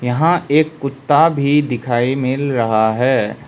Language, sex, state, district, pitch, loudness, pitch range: Hindi, male, Arunachal Pradesh, Lower Dibang Valley, 135 Hz, -16 LUFS, 125-150 Hz